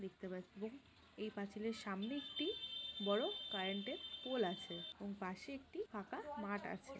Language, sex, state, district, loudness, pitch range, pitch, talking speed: Bengali, female, West Bengal, Jhargram, -45 LUFS, 195-275 Hz, 210 Hz, 145 wpm